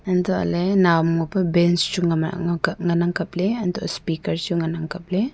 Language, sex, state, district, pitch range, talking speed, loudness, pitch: Wancho, female, Arunachal Pradesh, Longding, 170-185 Hz, 155 wpm, -21 LUFS, 175 Hz